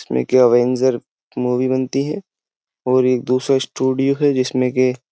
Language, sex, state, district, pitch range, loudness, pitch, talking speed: Hindi, male, Uttar Pradesh, Jyotiba Phule Nagar, 125-130 Hz, -17 LUFS, 130 Hz, 165 wpm